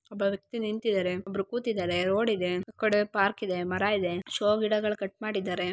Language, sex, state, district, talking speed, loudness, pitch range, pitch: Kannada, female, Karnataka, Gulbarga, 180 wpm, -29 LUFS, 185-215 Hz, 200 Hz